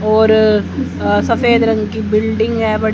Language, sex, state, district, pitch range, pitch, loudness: Hindi, female, Haryana, Rohtak, 215-220 Hz, 220 Hz, -14 LUFS